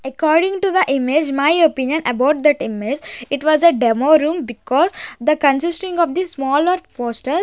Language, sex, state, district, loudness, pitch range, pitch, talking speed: English, female, Maharashtra, Gondia, -17 LUFS, 270-335 Hz, 300 Hz, 175 wpm